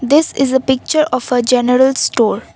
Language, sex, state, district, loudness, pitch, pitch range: English, female, Assam, Kamrup Metropolitan, -14 LUFS, 265 Hz, 250-270 Hz